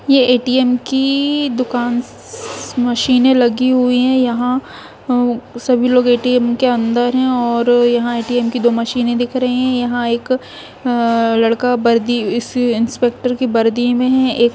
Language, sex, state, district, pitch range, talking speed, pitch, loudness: Hindi, female, Jharkhand, Jamtara, 240-255 Hz, 165 wpm, 245 Hz, -15 LUFS